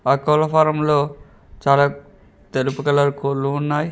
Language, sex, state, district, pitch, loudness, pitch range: Telugu, male, Telangana, Mahabubabad, 145 Hz, -19 LUFS, 140-150 Hz